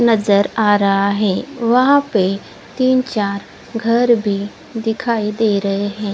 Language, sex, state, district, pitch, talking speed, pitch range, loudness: Hindi, female, Odisha, Khordha, 215 Hz, 135 wpm, 200-235 Hz, -16 LUFS